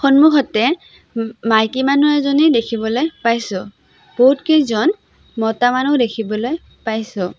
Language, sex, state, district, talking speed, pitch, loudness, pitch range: Assamese, female, Assam, Sonitpur, 80 wpm, 245 Hz, -16 LUFS, 225-285 Hz